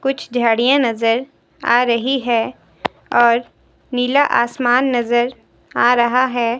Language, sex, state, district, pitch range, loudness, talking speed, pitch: Hindi, female, Himachal Pradesh, Shimla, 235-260 Hz, -17 LUFS, 120 wpm, 245 Hz